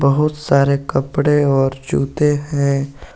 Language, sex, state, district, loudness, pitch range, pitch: Hindi, male, Jharkhand, Garhwa, -17 LUFS, 140-150 Hz, 140 Hz